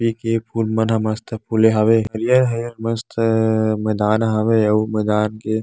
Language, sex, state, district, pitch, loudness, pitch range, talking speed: Chhattisgarhi, male, Chhattisgarh, Bastar, 110 Hz, -18 LUFS, 110-115 Hz, 170 wpm